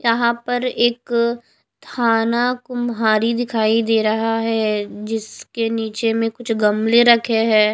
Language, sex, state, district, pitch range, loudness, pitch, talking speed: Hindi, female, Chhattisgarh, Raipur, 220-235 Hz, -18 LUFS, 225 Hz, 115 wpm